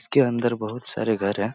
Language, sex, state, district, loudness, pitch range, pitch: Hindi, male, Bihar, Lakhisarai, -24 LUFS, 110-120 Hz, 115 Hz